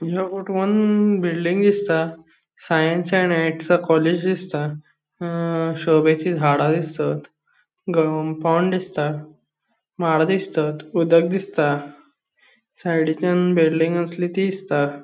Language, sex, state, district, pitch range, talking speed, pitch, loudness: Konkani, male, Goa, North and South Goa, 160-185 Hz, 95 wpm, 165 Hz, -20 LUFS